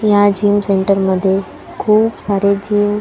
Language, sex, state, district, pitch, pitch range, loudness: Marathi, female, Maharashtra, Chandrapur, 205 Hz, 195-210 Hz, -14 LUFS